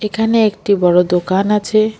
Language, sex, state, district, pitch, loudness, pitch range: Bengali, female, West Bengal, Alipurduar, 210 Hz, -14 LUFS, 185-215 Hz